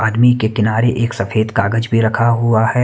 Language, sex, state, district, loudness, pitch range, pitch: Hindi, male, Haryana, Charkhi Dadri, -15 LUFS, 110-115 Hz, 115 Hz